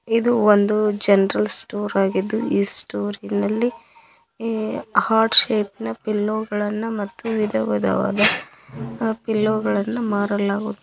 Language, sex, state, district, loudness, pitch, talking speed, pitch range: Kannada, female, Karnataka, Koppal, -20 LUFS, 210 Hz, 105 wpm, 195-220 Hz